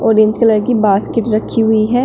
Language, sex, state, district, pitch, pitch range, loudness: Hindi, female, Uttar Pradesh, Shamli, 220 Hz, 215-230 Hz, -13 LUFS